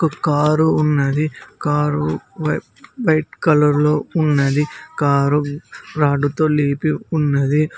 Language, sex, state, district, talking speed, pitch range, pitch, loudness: Telugu, male, Telangana, Mahabubabad, 95 wpm, 145-155 Hz, 150 Hz, -18 LUFS